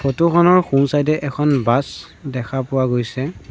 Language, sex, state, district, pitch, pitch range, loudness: Assamese, male, Assam, Sonitpur, 140 Hz, 130-150 Hz, -17 LUFS